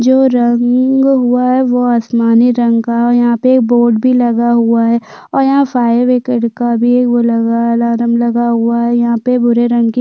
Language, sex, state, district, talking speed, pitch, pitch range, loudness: Hindi, female, Chhattisgarh, Sukma, 200 wpm, 240 Hz, 235-250 Hz, -11 LUFS